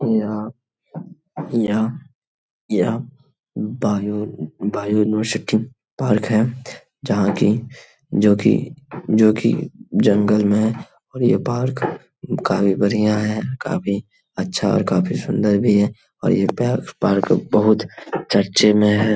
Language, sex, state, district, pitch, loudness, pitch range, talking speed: Hindi, male, Bihar, Jamui, 110 Hz, -19 LUFS, 105-120 Hz, 115 wpm